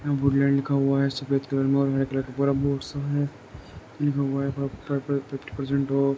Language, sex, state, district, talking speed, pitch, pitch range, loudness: Hindi, male, Uttar Pradesh, Jyotiba Phule Nagar, 225 wpm, 140 Hz, 135-140 Hz, -25 LUFS